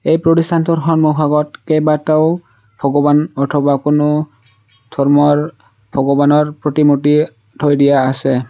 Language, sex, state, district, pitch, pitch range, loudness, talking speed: Assamese, male, Assam, Sonitpur, 145 Hz, 140-155 Hz, -14 LUFS, 100 wpm